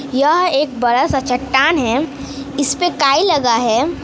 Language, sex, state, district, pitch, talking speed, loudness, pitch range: Hindi, female, West Bengal, Alipurduar, 275 Hz, 165 wpm, -15 LUFS, 250-295 Hz